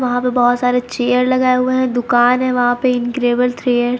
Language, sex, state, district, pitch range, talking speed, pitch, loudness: Hindi, female, Jharkhand, Palamu, 245-250 Hz, 225 wpm, 245 Hz, -15 LUFS